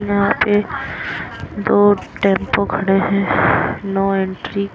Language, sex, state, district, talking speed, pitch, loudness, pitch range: Hindi, female, Haryana, Rohtak, 115 wpm, 195 Hz, -17 LUFS, 195-205 Hz